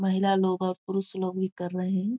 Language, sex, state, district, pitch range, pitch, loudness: Hindi, female, Bihar, Muzaffarpur, 185-195 Hz, 190 Hz, -28 LUFS